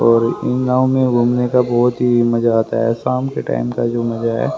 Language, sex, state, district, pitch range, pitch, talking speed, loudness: Hindi, male, Haryana, Rohtak, 115-125 Hz, 120 Hz, 235 wpm, -16 LUFS